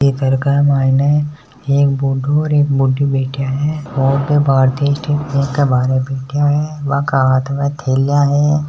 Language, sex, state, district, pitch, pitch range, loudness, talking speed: Hindi, male, Rajasthan, Nagaur, 140 Hz, 135-145 Hz, -15 LUFS, 160 wpm